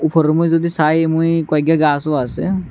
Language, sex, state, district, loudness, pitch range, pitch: Bengali, male, Tripura, West Tripura, -16 LUFS, 155-165 Hz, 160 Hz